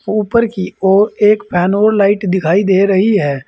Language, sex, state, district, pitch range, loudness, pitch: Hindi, male, Uttar Pradesh, Saharanpur, 190-210 Hz, -13 LUFS, 200 Hz